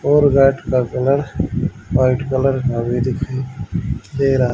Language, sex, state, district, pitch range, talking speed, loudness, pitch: Hindi, male, Haryana, Rohtak, 125-135 Hz, 145 wpm, -18 LUFS, 130 Hz